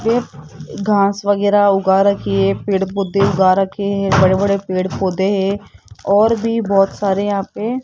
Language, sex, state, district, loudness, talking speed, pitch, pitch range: Hindi, female, Rajasthan, Jaipur, -16 LUFS, 175 wpm, 195 Hz, 190-205 Hz